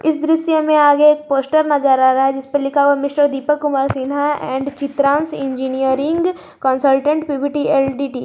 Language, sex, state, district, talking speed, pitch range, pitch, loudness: Hindi, female, Jharkhand, Garhwa, 180 wpm, 270-295 Hz, 285 Hz, -16 LUFS